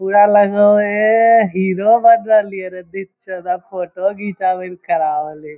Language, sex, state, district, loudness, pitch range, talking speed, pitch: Magahi, male, Bihar, Lakhisarai, -14 LUFS, 180-205 Hz, 160 wpm, 195 Hz